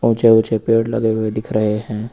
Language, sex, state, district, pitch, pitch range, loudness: Hindi, male, Uttar Pradesh, Lucknow, 110 Hz, 110-115 Hz, -17 LUFS